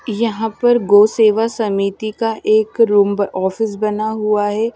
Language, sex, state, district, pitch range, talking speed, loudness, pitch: Hindi, female, Punjab, Fazilka, 205-225 Hz, 150 wpm, -16 LUFS, 215 Hz